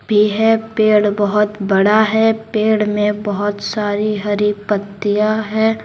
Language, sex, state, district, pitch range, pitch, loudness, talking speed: Hindi, male, Jharkhand, Deoghar, 205-220 Hz, 210 Hz, -16 LUFS, 135 wpm